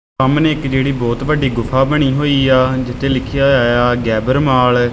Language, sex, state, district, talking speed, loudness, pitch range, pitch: Punjabi, male, Punjab, Kapurthala, 205 wpm, -14 LUFS, 125-140 Hz, 130 Hz